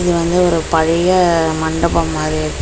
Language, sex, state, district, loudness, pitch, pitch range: Tamil, female, Tamil Nadu, Chennai, -15 LUFS, 165 Hz, 160-175 Hz